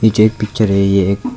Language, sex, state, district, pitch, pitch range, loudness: Hindi, male, Arunachal Pradesh, Longding, 105 Hz, 100-110 Hz, -14 LUFS